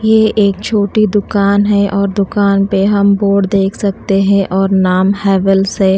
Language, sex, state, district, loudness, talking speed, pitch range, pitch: Hindi, female, Odisha, Nuapada, -12 LUFS, 170 wpm, 195-205 Hz, 200 Hz